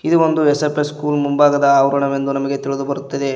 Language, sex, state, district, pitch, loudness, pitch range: Kannada, male, Karnataka, Koppal, 140 Hz, -16 LUFS, 140-150 Hz